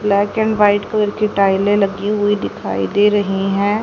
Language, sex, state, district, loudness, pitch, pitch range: Hindi, female, Haryana, Rohtak, -16 LUFS, 205 Hz, 200-210 Hz